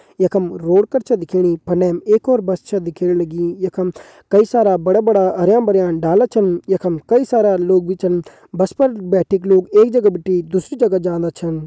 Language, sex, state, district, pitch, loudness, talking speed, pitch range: Hindi, male, Uttarakhand, Uttarkashi, 185 Hz, -16 LUFS, 200 wpm, 175-205 Hz